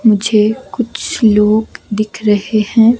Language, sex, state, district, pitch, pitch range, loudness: Hindi, female, Himachal Pradesh, Shimla, 215 Hz, 210-230 Hz, -14 LUFS